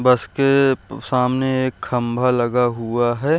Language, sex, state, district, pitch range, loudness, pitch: Hindi, male, Chhattisgarh, Raigarh, 120-130 Hz, -19 LUFS, 125 Hz